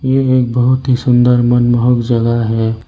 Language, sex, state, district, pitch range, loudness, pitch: Hindi, male, Arunachal Pradesh, Lower Dibang Valley, 120-125 Hz, -12 LUFS, 120 Hz